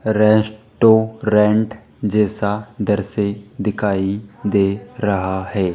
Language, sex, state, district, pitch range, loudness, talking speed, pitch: Hindi, male, Rajasthan, Jaipur, 100-110 Hz, -18 LUFS, 85 wpm, 105 Hz